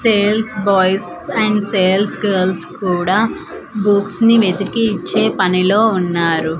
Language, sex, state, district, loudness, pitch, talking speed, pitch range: Telugu, female, Andhra Pradesh, Manyam, -15 LUFS, 200 Hz, 110 wpm, 185-215 Hz